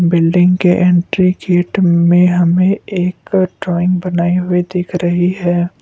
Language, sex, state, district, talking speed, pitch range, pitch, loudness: Hindi, male, Assam, Kamrup Metropolitan, 135 wpm, 175-180 Hz, 180 Hz, -13 LUFS